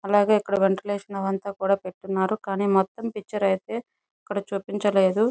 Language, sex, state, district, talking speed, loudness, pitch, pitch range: Telugu, female, Andhra Pradesh, Chittoor, 145 wpm, -25 LUFS, 200 Hz, 195-205 Hz